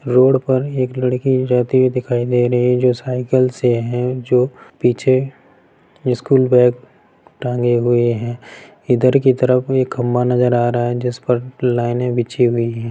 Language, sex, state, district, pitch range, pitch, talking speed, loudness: Hindi, male, Bihar, Sitamarhi, 120-130 Hz, 125 Hz, 165 wpm, -16 LUFS